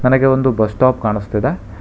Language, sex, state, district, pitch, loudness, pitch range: Kannada, male, Karnataka, Bangalore, 125 Hz, -16 LUFS, 105-130 Hz